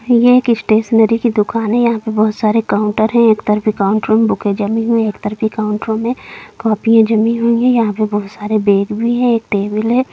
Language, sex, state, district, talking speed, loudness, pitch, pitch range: Hindi, female, Bihar, Gopalganj, 225 wpm, -14 LUFS, 220 Hz, 210-230 Hz